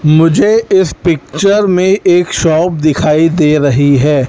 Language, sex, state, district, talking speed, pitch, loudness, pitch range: Hindi, male, Chhattisgarh, Raipur, 140 wpm, 160 Hz, -10 LUFS, 150-180 Hz